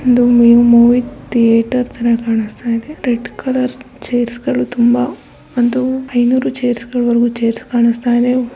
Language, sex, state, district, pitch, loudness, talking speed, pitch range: Kannada, female, Karnataka, Raichur, 240 Hz, -14 LUFS, 100 wpm, 235-250 Hz